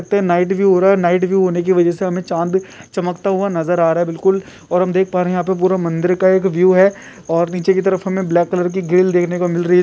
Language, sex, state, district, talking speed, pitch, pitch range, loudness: Hindi, male, Rajasthan, Churu, 300 wpm, 180 Hz, 175-190 Hz, -16 LUFS